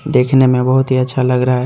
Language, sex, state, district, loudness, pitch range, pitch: Hindi, male, Jharkhand, Deoghar, -13 LUFS, 125-130 Hz, 130 Hz